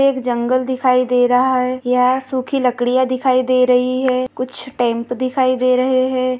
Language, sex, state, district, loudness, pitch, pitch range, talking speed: Hindi, female, Maharashtra, Pune, -16 LUFS, 255 Hz, 250-255 Hz, 180 wpm